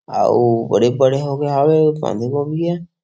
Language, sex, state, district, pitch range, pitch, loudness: Chhattisgarhi, male, Chhattisgarh, Sarguja, 130-155 Hz, 145 Hz, -16 LUFS